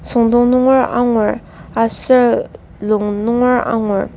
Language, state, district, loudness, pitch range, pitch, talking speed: Ao, Nagaland, Kohima, -14 LUFS, 220-250 Hz, 240 Hz, 100 wpm